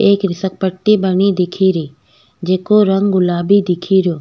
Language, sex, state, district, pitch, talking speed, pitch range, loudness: Rajasthani, female, Rajasthan, Nagaur, 190 Hz, 115 wpm, 180-195 Hz, -14 LUFS